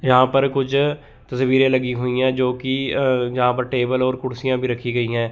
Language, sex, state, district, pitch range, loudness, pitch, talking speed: Hindi, male, Chandigarh, Chandigarh, 125-130 Hz, -20 LUFS, 130 Hz, 205 wpm